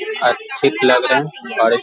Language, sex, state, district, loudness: Hindi, male, Bihar, Darbhanga, -16 LUFS